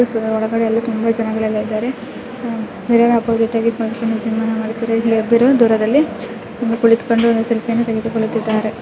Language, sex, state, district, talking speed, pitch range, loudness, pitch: Kannada, female, Karnataka, Gulbarga, 115 wpm, 225-235 Hz, -17 LUFS, 230 Hz